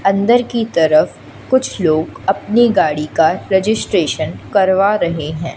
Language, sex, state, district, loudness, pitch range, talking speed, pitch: Hindi, female, Madhya Pradesh, Katni, -15 LUFS, 160-230 Hz, 130 wpm, 195 Hz